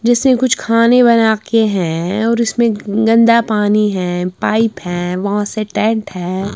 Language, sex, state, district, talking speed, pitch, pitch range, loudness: Hindi, female, Bihar, West Champaran, 155 wpm, 215 Hz, 190-230 Hz, -14 LUFS